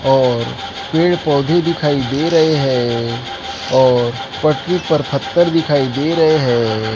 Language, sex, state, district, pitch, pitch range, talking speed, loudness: Hindi, male, Maharashtra, Gondia, 140 Hz, 125-160 Hz, 130 wpm, -15 LUFS